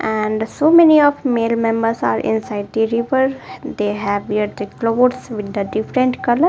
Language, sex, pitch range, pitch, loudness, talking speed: English, female, 215-255 Hz, 230 Hz, -17 LUFS, 175 wpm